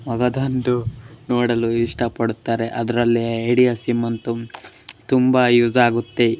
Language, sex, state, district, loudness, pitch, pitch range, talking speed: Kannada, male, Karnataka, Bellary, -19 LUFS, 120 Hz, 115-125 Hz, 110 wpm